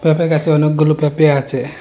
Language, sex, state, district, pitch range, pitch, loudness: Bengali, male, Assam, Hailakandi, 150-155 Hz, 155 Hz, -14 LUFS